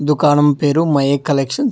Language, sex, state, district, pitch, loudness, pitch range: Telugu, male, Telangana, Hyderabad, 145 Hz, -15 LUFS, 140-150 Hz